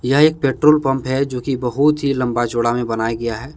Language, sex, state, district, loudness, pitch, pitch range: Hindi, male, Jharkhand, Deoghar, -17 LUFS, 130 Hz, 120-140 Hz